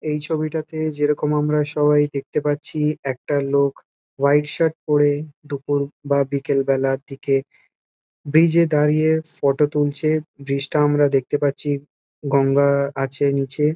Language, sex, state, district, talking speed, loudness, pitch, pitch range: Bengali, male, West Bengal, Kolkata, 130 wpm, -20 LUFS, 145 Hz, 140-150 Hz